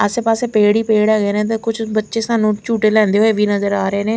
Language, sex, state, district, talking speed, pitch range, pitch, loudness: Hindi, female, Chandigarh, Chandigarh, 275 wpm, 210-225 Hz, 215 Hz, -16 LUFS